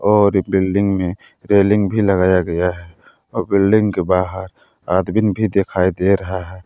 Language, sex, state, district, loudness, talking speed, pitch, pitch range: Hindi, male, Jharkhand, Palamu, -17 LUFS, 170 wpm, 95 Hz, 90-100 Hz